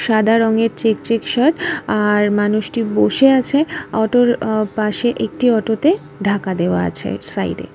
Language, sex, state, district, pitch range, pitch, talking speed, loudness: Bengali, female, West Bengal, Kolkata, 210-245 Hz, 220 Hz, 155 wpm, -16 LUFS